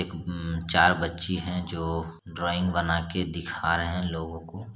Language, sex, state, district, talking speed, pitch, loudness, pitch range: Hindi, male, Bihar, Saran, 190 wpm, 85 Hz, -27 LUFS, 85-90 Hz